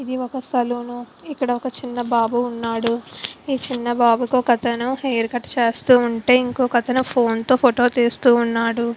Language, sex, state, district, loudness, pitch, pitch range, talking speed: Telugu, female, Andhra Pradesh, Visakhapatnam, -19 LUFS, 245 Hz, 235-255 Hz, 155 wpm